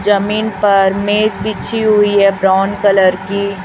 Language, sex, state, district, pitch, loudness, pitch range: Hindi, female, Chhattisgarh, Raipur, 200 Hz, -13 LUFS, 195-210 Hz